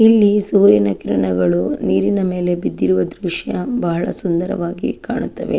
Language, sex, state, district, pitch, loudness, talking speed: Kannada, female, Karnataka, Chamarajanagar, 170 Hz, -17 LUFS, 120 wpm